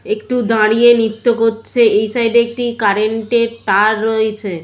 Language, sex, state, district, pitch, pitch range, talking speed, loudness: Bengali, female, West Bengal, Jhargram, 225 Hz, 215-235 Hz, 155 wpm, -14 LUFS